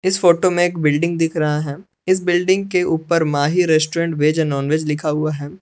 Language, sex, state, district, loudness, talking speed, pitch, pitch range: Hindi, male, Jharkhand, Palamu, -18 LUFS, 215 wpm, 165 Hz, 150-175 Hz